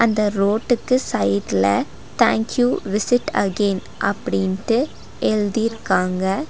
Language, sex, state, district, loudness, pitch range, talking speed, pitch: Tamil, female, Tamil Nadu, Nilgiris, -20 LUFS, 195-235 Hz, 85 wpm, 210 Hz